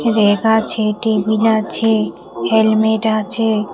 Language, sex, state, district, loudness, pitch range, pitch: Bengali, female, Tripura, West Tripura, -15 LUFS, 215-220 Hz, 220 Hz